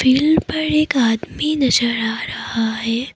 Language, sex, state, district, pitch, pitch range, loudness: Hindi, female, Assam, Kamrup Metropolitan, 250 Hz, 230-300 Hz, -18 LUFS